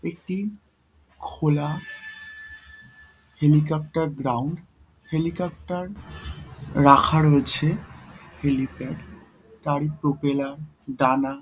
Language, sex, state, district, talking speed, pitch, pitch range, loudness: Bengali, female, West Bengal, Dakshin Dinajpur, 60 wpm, 150 Hz, 140-180 Hz, -23 LUFS